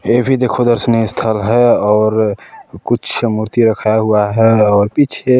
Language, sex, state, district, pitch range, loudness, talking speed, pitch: Hindi, male, Chhattisgarh, Balrampur, 110-120 Hz, -13 LUFS, 155 wpm, 115 Hz